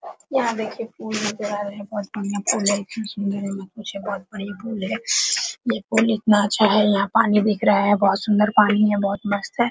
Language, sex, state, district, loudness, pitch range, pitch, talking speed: Hindi, female, Bihar, Araria, -21 LUFS, 200-215 Hz, 210 Hz, 235 wpm